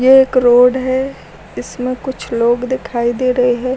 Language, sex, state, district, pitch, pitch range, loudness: Hindi, female, Uttar Pradesh, Lucknow, 255 Hz, 245-260 Hz, -14 LUFS